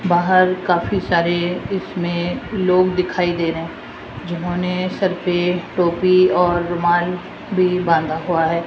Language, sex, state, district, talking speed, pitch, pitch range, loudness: Hindi, female, Rajasthan, Jaipur, 125 wpm, 175 Hz, 175-185 Hz, -18 LUFS